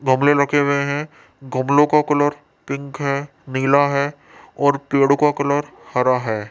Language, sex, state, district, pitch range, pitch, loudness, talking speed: Hindi, male, Rajasthan, Jaipur, 135-145 Hz, 140 Hz, -19 LUFS, 155 wpm